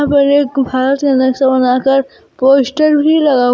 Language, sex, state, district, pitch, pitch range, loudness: Hindi, female, Jharkhand, Garhwa, 270 Hz, 260-285 Hz, -12 LUFS